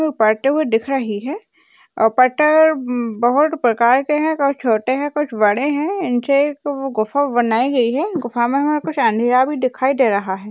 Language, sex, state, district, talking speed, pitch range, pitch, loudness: Hindi, female, Uttarakhand, Uttarkashi, 205 wpm, 235-300 Hz, 270 Hz, -17 LUFS